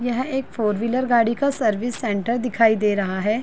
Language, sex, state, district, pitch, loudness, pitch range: Hindi, female, Chhattisgarh, Bilaspur, 235 Hz, -21 LUFS, 215-245 Hz